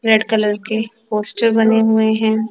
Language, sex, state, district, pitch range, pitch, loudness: Hindi, female, Punjab, Kapurthala, 220-225 Hz, 220 Hz, -16 LUFS